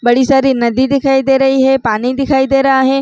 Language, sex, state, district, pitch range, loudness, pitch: Chhattisgarhi, female, Chhattisgarh, Raigarh, 260-270 Hz, -12 LUFS, 270 Hz